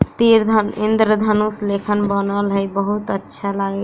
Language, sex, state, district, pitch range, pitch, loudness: Bajjika, female, Bihar, Vaishali, 200-215 Hz, 205 Hz, -18 LUFS